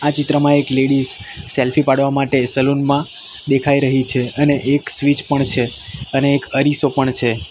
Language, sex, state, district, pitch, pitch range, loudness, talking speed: Gujarati, male, Gujarat, Valsad, 140 Hz, 130-145 Hz, -15 LUFS, 175 wpm